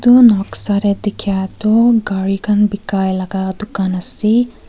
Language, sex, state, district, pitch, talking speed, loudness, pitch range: Nagamese, female, Nagaland, Kohima, 205 Hz, 155 wpm, -15 LUFS, 195-215 Hz